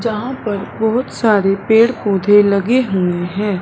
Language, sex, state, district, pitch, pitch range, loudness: Hindi, female, Punjab, Fazilka, 210 Hz, 195-230 Hz, -15 LUFS